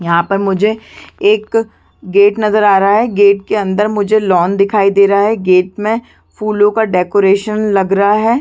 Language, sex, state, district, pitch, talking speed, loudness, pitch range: Hindi, female, Chhattisgarh, Bastar, 205 Hz, 185 wpm, -12 LUFS, 195-215 Hz